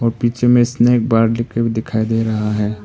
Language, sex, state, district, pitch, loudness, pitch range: Hindi, male, Arunachal Pradesh, Papum Pare, 115 Hz, -16 LUFS, 110-120 Hz